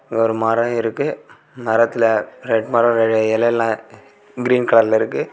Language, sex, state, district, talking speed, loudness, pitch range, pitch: Tamil, male, Tamil Nadu, Kanyakumari, 125 wpm, -17 LUFS, 110-120 Hz, 115 Hz